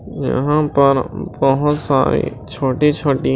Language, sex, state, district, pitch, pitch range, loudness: Hindi, male, Maharashtra, Washim, 140 Hz, 135-150 Hz, -17 LUFS